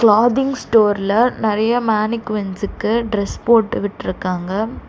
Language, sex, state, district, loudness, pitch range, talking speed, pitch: Tamil, female, Tamil Nadu, Chennai, -18 LUFS, 205-235 Hz, 85 wpm, 220 Hz